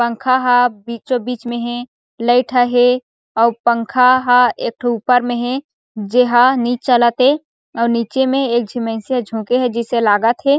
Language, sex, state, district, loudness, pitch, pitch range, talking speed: Chhattisgarhi, female, Chhattisgarh, Sarguja, -15 LUFS, 245 Hz, 235-250 Hz, 175 wpm